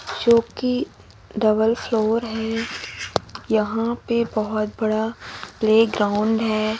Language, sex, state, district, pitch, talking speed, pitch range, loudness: Hindi, female, Madhya Pradesh, Umaria, 225 Hz, 95 wpm, 215-230 Hz, -22 LUFS